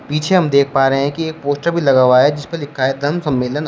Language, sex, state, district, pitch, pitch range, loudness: Hindi, male, Uttar Pradesh, Shamli, 145 Hz, 135-160 Hz, -15 LUFS